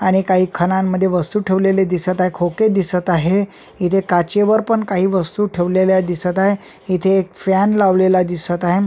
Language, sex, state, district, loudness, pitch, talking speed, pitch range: Marathi, male, Maharashtra, Solapur, -16 LUFS, 185 Hz, 175 wpm, 180-195 Hz